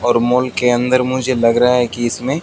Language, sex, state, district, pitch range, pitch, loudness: Hindi, male, Haryana, Jhajjar, 120-130 Hz, 125 Hz, -15 LUFS